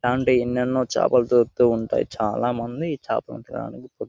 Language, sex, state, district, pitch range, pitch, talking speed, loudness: Telugu, male, Telangana, Nalgonda, 120-125 Hz, 125 Hz, 175 wpm, -22 LUFS